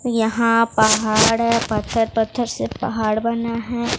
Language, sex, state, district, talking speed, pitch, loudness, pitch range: Hindi, female, Odisha, Sambalpur, 135 wpm, 230 Hz, -19 LUFS, 220-230 Hz